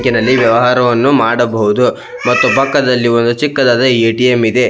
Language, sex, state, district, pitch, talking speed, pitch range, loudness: Kannada, male, Karnataka, Belgaum, 120 Hz, 115 wpm, 115-125 Hz, -11 LUFS